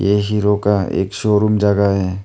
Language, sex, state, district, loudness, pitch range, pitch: Hindi, male, Arunachal Pradesh, Longding, -16 LUFS, 100-105 Hz, 100 Hz